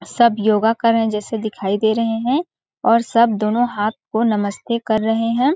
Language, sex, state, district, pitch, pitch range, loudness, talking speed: Hindi, female, Chhattisgarh, Balrampur, 225 Hz, 215-235 Hz, -18 LUFS, 205 wpm